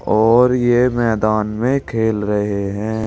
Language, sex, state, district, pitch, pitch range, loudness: Hindi, male, Uttar Pradesh, Saharanpur, 110 Hz, 105-120 Hz, -16 LUFS